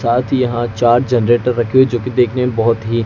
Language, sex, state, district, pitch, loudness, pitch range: Hindi, male, Maharashtra, Gondia, 120 Hz, -14 LUFS, 120-125 Hz